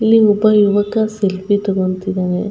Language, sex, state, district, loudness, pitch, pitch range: Kannada, female, Karnataka, Chamarajanagar, -15 LUFS, 205 Hz, 190-215 Hz